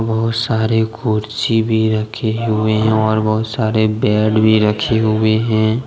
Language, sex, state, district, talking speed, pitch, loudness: Hindi, male, Jharkhand, Deoghar, 155 wpm, 110 Hz, -16 LUFS